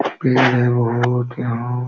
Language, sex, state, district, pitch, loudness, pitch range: Hindi, male, Uttar Pradesh, Jalaun, 125 Hz, -18 LUFS, 120-125 Hz